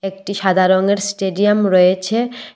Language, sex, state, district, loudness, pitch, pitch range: Bengali, female, Tripura, West Tripura, -16 LUFS, 195 Hz, 190-205 Hz